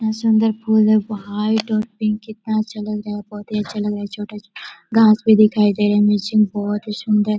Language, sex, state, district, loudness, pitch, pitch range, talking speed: Hindi, female, Chhattisgarh, Korba, -18 LUFS, 210 Hz, 210-220 Hz, 225 wpm